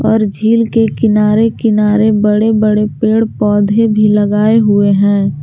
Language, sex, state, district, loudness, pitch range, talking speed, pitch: Hindi, female, Jharkhand, Garhwa, -11 LUFS, 210-220 Hz, 145 wpm, 215 Hz